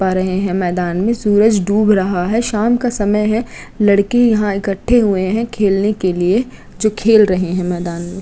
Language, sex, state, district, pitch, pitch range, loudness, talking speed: Hindi, female, Uttar Pradesh, Gorakhpur, 205 Hz, 185-220 Hz, -15 LUFS, 195 wpm